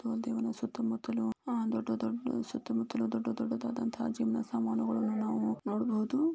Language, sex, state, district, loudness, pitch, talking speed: Kannada, female, Karnataka, Belgaum, -34 LUFS, 225 Hz, 105 wpm